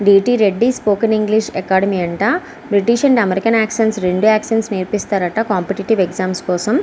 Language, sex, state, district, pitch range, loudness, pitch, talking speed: Telugu, female, Andhra Pradesh, Srikakulam, 190-225 Hz, -16 LUFS, 210 Hz, 160 wpm